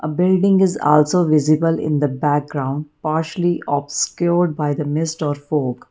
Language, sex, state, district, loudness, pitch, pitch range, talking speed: English, female, Karnataka, Bangalore, -18 LUFS, 155 Hz, 145-170 Hz, 150 wpm